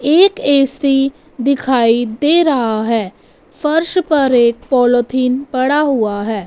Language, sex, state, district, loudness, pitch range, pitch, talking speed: Hindi, female, Punjab, Fazilka, -14 LUFS, 240-295 Hz, 265 Hz, 120 wpm